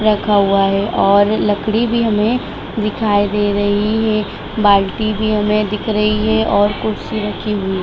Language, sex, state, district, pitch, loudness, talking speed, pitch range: Hindi, female, Bihar, Sitamarhi, 210 Hz, -16 LUFS, 170 wpm, 205-215 Hz